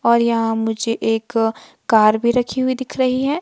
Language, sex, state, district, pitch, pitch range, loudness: Hindi, female, Himachal Pradesh, Shimla, 230 Hz, 225-255 Hz, -18 LUFS